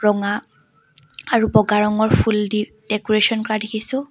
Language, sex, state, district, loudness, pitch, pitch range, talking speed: Assamese, female, Assam, Sonitpur, -19 LUFS, 215 Hz, 210-220 Hz, 130 wpm